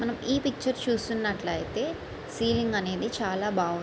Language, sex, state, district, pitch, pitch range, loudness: Telugu, female, Andhra Pradesh, Srikakulam, 225 Hz, 190-235 Hz, -29 LUFS